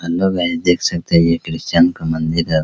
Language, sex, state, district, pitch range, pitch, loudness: Hindi, male, Bihar, Araria, 80-90 Hz, 85 Hz, -16 LUFS